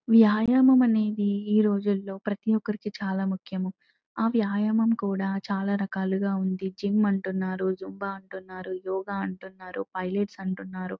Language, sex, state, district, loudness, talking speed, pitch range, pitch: Telugu, female, Telangana, Nalgonda, -26 LUFS, 125 wpm, 190-210 Hz, 195 Hz